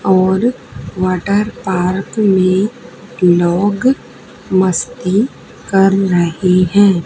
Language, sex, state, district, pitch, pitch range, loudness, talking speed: Hindi, female, Haryana, Charkhi Dadri, 190 Hz, 185-205 Hz, -14 LUFS, 75 wpm